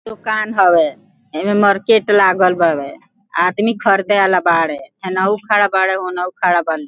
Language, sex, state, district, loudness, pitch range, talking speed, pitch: Bhojpuri, female, Bihar, Gopalganj, -15 LUFS, 180-205 Hz, 140 wpm, 190 Hz